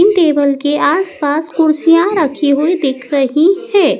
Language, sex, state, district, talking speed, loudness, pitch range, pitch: Hindi, male, Madhya Pradesh, Dhar, 150 wpm, -13 LUFS, 285-350 Hz, 310 Hz